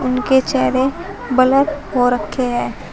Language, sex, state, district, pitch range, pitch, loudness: Hindi, female, Uttar Pradesh, Shamli, 245-270 Hz, 255 Hz, -16 LUFS